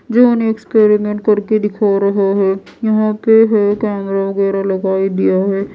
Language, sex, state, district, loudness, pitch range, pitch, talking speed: Hindi, female, Odisha, Malkangiri, -14 LUFS, 195-215 Hz, 205 Hz, 145 wpm